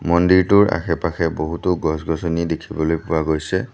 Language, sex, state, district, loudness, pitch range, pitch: Assamese, male, Assam, Sonitpur, -19 LUFS, 80-90 Hz, 85 Hz